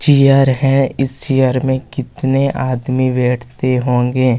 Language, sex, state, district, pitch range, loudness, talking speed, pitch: Hindi, male, Chhattisgarh, Kabirdham, 125-135 Hz, -14 LUFS, 125 wpm, 130 Hz